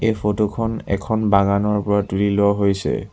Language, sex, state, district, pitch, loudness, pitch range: Assamese, male, Assam, Sonitpur, 100 Hz, -19 LUFS, 100-105 Hz